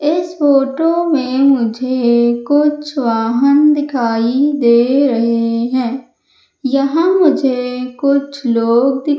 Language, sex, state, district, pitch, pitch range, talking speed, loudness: Hindi, female, Madhya Pradesh, Umaria, 270 Hz, 240-290 Hz, 105 wpm, -14 LUFS